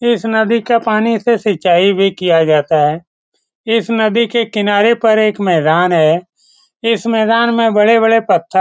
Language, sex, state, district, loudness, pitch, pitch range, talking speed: Hindi, male, Bihar, Saran, -13 LUFS, 220 Hz, 185-230 Hz, 165 wpm